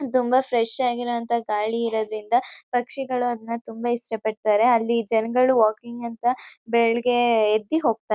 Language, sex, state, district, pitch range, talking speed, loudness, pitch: Kannada, female, Karnataka, Chamarajanagar, 225-245 Hz, 120 wpm, -22 LUFS, 235 Hz